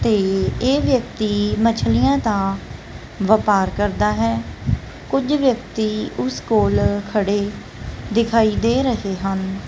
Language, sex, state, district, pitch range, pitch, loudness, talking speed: Punjabi, female, Punjab, Kapurthala, 190-225 Hz, 205 Hz, -19 LUFS, 105 wpm